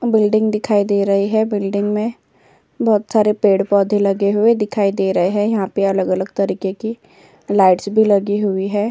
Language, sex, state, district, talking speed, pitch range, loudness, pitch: Hindi, female, Uttar Pradesh, Jyotiba Phule Nagar, 175 wpm, 195-215 Hz, -17 LUFS, 205 Hz